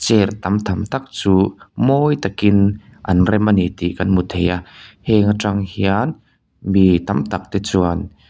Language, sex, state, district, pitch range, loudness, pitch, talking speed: Mizo, male, Mizoram, Aizawl, 90-105 Hz, -17 LUFS, 100 Hz, 175 wpm